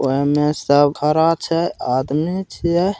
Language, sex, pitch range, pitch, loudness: Bhojpuri, male, 145-170 Hz, 150 Hz, -18 LUFS